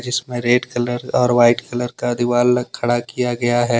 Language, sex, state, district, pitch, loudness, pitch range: Hindi, male, Jharkhand, Deoghar, 120 Hz, -18 LUFS, 120-125 Hz